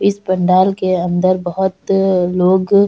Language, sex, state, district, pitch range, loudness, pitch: Hindi, female, Uttar Pradesh, Jalaun, 180-195 Hz, -15 LUFS, 185 Hz